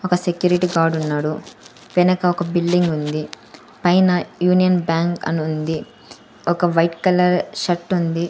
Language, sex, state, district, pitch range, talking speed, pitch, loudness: Telugu, female, Andhra Pradesh, Sri Satya Sai, 165-180 Hz, 115 wpm, 175 Hz, -19 LUFS